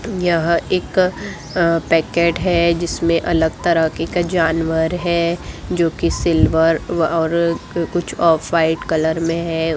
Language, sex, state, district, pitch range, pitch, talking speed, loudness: Hindi, female, Bihar, Lakhisarai, 165-170 Hz, 170 Hz, 130 wpm, -17 LUFS